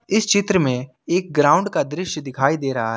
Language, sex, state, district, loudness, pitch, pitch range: Hindi, male, Jharkhand, Ranchi, -19 LUFS, 150 Hz, 135-185 Hz